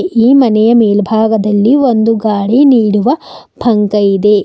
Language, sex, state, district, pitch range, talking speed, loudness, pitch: Kannada, female, Karnataka, Bidar, 210-245 Hz, 110 wpm, -10 LUFS, 220 Hz